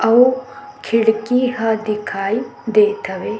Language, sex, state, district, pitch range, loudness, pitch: Chhattisgarhi, female, Chhattisgarh, Sukma, 220-260 Hz, -17 LUFS, 240 Hz